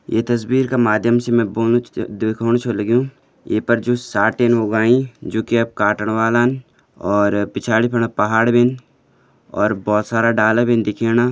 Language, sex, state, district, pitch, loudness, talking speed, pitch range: Garhwali, male, Uttarakhand, Uttarkashi, 115 Hz, -17 LUFS, 165 wpm, 110-120 Hz